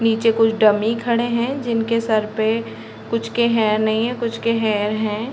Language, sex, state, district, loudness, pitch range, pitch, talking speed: Hindi, female, Uttar Pradesh, Deoria, -19 LUFS, 220-230 Hz, 225 Hz, 180 wpm